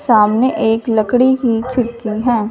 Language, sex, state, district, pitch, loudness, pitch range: Hindi, female, Punjab, Fazilka, 235 Hz, -15 LUFS, 220-250 Hz